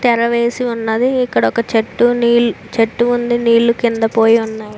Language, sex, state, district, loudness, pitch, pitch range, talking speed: Telugu, female, Andhra Pradesh, Chittoor, -14 LUFS, 235 Hz, 225-240 Hz, 165 wpm